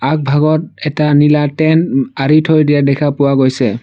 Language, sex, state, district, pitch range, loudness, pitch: Assamese, male, Assam, Sonitpur, 140-155 Hz, -12 LUFS, 145 Hz